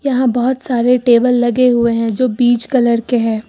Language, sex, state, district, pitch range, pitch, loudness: Hindi, female, Uttar Pradesh, Lucknow, 235-255 Hz, 245 Hz, -14 LUFS